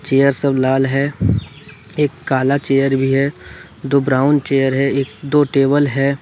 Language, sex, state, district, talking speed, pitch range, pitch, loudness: Hindi, male, Jharkhand, Deoghar, 165 wpm, 135-140 Hz, 140 Hz, -16 LUFS